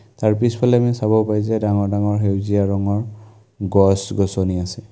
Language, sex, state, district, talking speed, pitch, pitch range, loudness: Assamese, male, Assam, Kamrup Metropolitan, 145 wpm, 105 Hz, 100-110 Hz, -18 LUFS